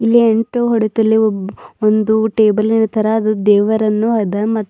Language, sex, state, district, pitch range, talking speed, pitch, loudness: Kannada, female, Karnataka, Bidar, 215-225 Hz, 155 wpm, 220 Hz, -14 LUFS